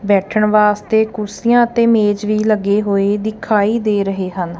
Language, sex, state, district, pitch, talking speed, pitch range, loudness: Punjabi, female, Punjab, Kapurthala, 210 Hz, 155 wpm, 200-220 Hz, -15 LUFS